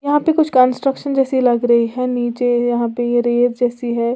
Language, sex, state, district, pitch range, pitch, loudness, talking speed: Hindi, female, Uttar Pradesh, Lalitpur, 240-265 Hz, 245 Hz, -16 LUFS, 215 wpm